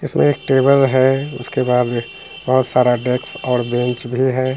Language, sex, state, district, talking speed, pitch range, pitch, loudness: Hindi, male, Bihar, Muzaffarpur, 170 wpm, 125-135 Hz, 130 Hz, -16 LUFS